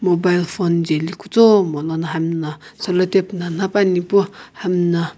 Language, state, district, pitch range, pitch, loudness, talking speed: Sumi, Nagaland, Kohima, 165-195 Hz, 180 Hz, -18 LUFS, 125 wpm